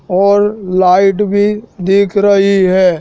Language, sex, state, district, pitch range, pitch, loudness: Hindi, male, Madhya Pradesh, Dhar, 185-205 Hz, 200 Hz, -11 LUFS